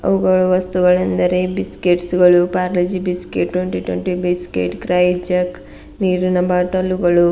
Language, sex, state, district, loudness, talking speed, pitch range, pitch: Kannada, female, Karnataka, Bidar, -17 LUFS, 130 wpm, 175-180 Hz, 180 Hz